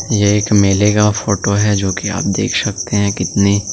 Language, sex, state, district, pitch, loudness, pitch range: Hindi, male, Chhattisgarh, Sukma, 100 Hz, -14 LUFS, 100-105 Hz